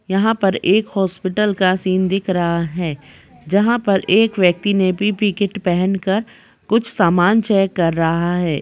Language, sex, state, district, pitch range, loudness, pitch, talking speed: Hindi, female, Uttar Pradesh, Jalaun, 180-205 Hz, -17 LUFS, 190 Hz, 160 wpm